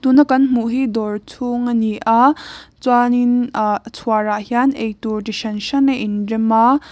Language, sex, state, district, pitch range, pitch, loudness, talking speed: Mizo, female, Mizoram, Aizawl, 220-250 Hz, 235 Hz, -17 LUFS, 210 wpm